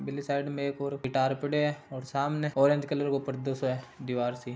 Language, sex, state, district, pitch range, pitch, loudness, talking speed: Marwari, male, Rajasthan, Churu, 130-145 Hz, 140 Hz, -30 LUFS, 235 wpm